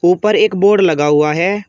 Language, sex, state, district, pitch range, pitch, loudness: Hindi, male, Uttar Pradesh, Shamli, 155-205 Hz, 190 Hz, -12 LUFS